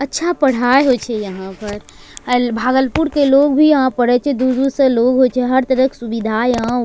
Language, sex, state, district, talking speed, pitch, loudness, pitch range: Angika, female, Bihar, Bhagalpur, 220 wpm, 255 Hz, -15 LUFS, 240-275 Hz